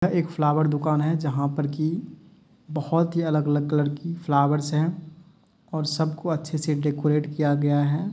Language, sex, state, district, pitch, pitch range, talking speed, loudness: Hindi, male, Uttar Pradesh, Etah, 155 Hz, 150-170 Hz, 185 wpm, -24 LUFS